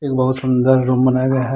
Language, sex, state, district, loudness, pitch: Hindi, male, Jharkhand, Deoghar, -16 LUFS, 130 Hz